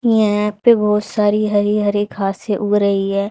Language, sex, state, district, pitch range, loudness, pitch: Hindi, female, Haryana, Charkhi Dadri, 205-210 Hz, -16 LUFS, 205 Hz